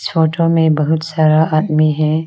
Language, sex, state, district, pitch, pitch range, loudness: Hindi, female, Arunachal Pradesh, Lower Dibang Valley, 155 Hz, 155-160 Hz, -14 LUFS